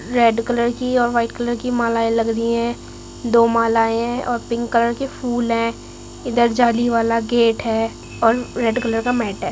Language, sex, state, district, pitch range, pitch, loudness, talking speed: Hindi, female, Uttar Pradesh, Muzaffarnagar, 230-240 Hz, 235 Hz, -19 LUFS, 195 wpm